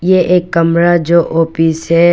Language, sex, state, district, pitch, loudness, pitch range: Hindi, female, Arunachal Pradesh, Papum Pare, 170 Hz, -11 LUFS, 165-175 Hz